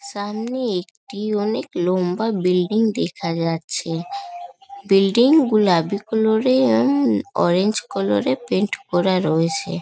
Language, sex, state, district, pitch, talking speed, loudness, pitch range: Bengali, female, West Bengal, North 24 Parganas, 205 Hz, 105 wpm, -19 LUFS, 180-235 Hz